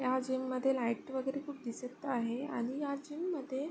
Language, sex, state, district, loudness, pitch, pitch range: Marathi, female, Maharashtra, Sindhudurg, -37 LUFS, 260 Hz, 250-280 Hz